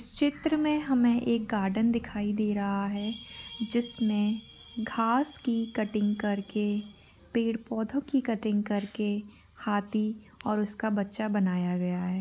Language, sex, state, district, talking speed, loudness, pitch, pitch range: Hindi, female, Jharkhand, Jamtara, 135 wpm, -30 LUFS, 215 Hz, 205-235 Hz